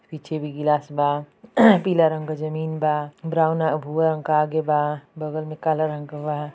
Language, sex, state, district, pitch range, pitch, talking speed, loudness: Bhojpuri, female, Uttar Pradesh, Ghazipur, 150-160 Hz, 155 Hz, 195 wpm, -22 LUFS